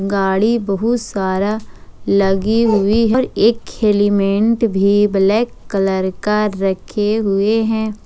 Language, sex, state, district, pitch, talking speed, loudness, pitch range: Hindi, female, Jharkhand, Ranchi, 205 Hz, 110 wpm, -16 LUFS, 195-225 Hz